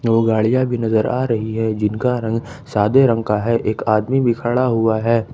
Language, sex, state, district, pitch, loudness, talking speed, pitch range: Hindi, male, Jharkhand, Ranchi, 115 Hz, -18 LUFS, 215 wpm, 110-125 Hz